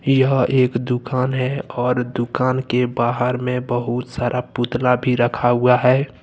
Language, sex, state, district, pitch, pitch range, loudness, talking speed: Hindi, male, Jharkhand, Deoghar, 125 Hz, 120-130 Hz, -19 LUFS, 155 wpm